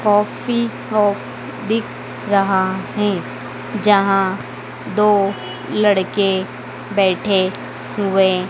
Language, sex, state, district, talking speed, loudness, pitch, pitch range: Hindi, female, Madhya Pradesh, Dhar, 70 wpm, -18 LUFS, 200 Hz, 190-210 Hz